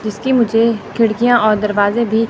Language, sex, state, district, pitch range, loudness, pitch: Hindi, male, Chandigarh, Chandigarh, 215-235 Hz, -14 LUFS, 225 Hz